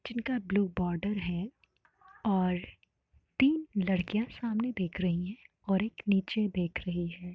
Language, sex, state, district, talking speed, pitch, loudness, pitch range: Hindi, female, Uttar Pradesh, Varanasi, 140 wpm, 200 Hz, -32 LUFS, 180-230 Hz